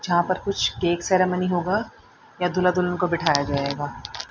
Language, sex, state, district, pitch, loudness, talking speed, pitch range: Hindi, female, Haryana, Rohtak, 180 Hz, -23 LUFS, 165 wpm, 145-185 Hz